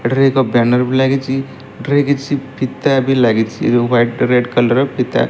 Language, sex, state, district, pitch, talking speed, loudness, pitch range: Odia, male, Odisha, Malkangiri, 130 Hz, 190 wpm, -15 LUFS, 120-135 Hz